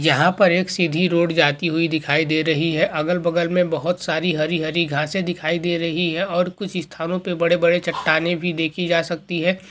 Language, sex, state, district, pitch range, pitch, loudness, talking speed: Hindi, male, West Bengal, Kolkata, 160-175 Hz, 170 Hz, -20 LUFS, 195 wpm